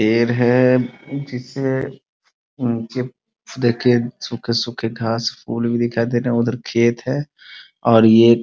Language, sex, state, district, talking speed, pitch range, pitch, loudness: Hindi, male, Bihar, Muzaffarpur, 135 wpm, 115-125 Hz, 120 Hz, -19 LUFS